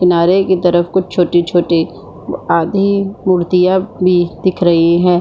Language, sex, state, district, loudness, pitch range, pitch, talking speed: Hindi, female, Bihar, Supaul, -13 LUFS, 175-190 Hz, 180 Hz, 140 wpm